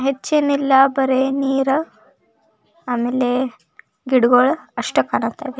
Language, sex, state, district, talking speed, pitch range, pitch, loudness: Kannada, female, Karnataka, Belgaum, 75 wpm, 255-275 Hz, 270 Hz, -18 LUFS